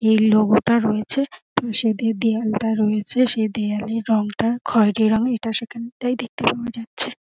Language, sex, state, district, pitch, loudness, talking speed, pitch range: Bengali, female, West Bengal, Dakshin Dinajpur, 225 Hz, -20 LUFS, 140 wpm, 215-235 Hz